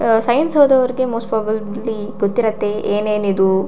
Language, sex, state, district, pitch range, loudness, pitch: Kannada, female, Karnataka, Shimoga, 210-240 Hz, -17 LUFS, 220 Hz